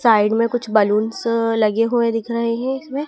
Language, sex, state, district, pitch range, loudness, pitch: Hindi, female, Madhya Pradesh, Dhar, 220-235 Hz, -18 LUFS, 230 Hz